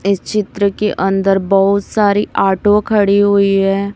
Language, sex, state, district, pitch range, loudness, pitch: Hindi, female, Chhattisgarh, Raipur, 195-205 Hz, -14 LUFS, 200 Hz